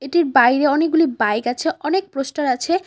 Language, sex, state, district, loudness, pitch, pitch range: Bengali, female, West Bengal, Cooch Behar, -18 LUFS, 285 Hz, 260-330 Hz